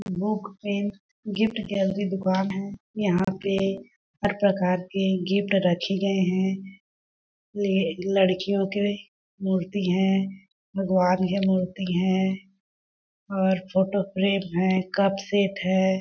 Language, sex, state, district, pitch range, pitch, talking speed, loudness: Hindi, female, Chhattisgarh, Balrampur, 185-200 Hz, 195 Hz, 115 wpm, -25 LUFS